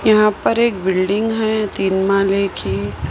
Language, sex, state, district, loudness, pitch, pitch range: Hindi, female, Maharashtra, Mumbai Suburban, -17 LUFS, 195 Hz, 185-215 Hz